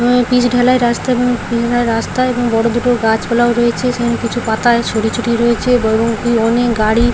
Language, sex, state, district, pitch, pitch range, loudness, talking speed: Bengali, female, West Bengal, Paschim Medinipur, 235 Hz, 230-245 Hz, -14 LUFS, 175 wpm